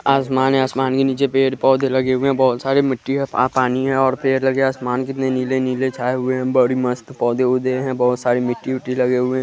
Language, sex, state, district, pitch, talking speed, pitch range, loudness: Hindi, male, Bihar, West Champaran, 130 Hz, 230 wpm, 125-135 Hz, -18 LUFS